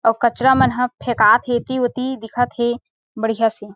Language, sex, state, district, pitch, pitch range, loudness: Chhattisgarhi, female, Chhattisgarh, Sarguja, 240 Hz, 225-250 Hz, -18 LUFS